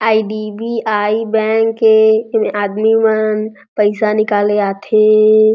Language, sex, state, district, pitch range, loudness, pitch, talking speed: Chhattisgarhi, female, Chhattisgarh, Jashpur, 210-220 Hz, -14 LUFS, 215 Hz, 95 wpm